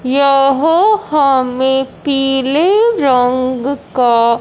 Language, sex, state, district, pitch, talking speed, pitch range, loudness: Hindi, male, Punjab, Fazilka, 270 Hz, 70 wpm, 255-290 Hz, -12 LUFS